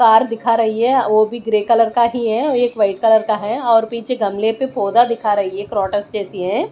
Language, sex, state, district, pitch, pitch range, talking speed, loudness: Hindi, female, Odisha, Malkangiri, 225 Hz, 210-235 Hz, 230 wpm, -16 LUFS